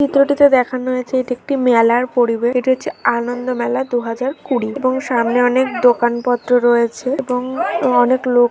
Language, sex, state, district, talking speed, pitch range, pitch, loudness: Bengali, female, West Bengal, Purulia, 170 wpm, 240-260 Hz, 250 Hz, -16 LUFS